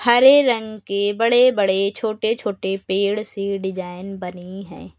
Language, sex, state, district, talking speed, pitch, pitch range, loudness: Hindi, male, Uttar Pradesh, Lucknow, 145 wpm, 200 Hz, 190-225 Hz, -19 LUFS